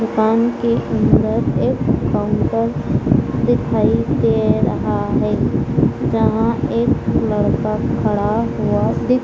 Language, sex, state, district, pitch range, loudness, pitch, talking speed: Hindi, female, Madhya Pradesh, Dhar, 225-235 Hz, -17 LUFS, 230 Hz, 95 wpm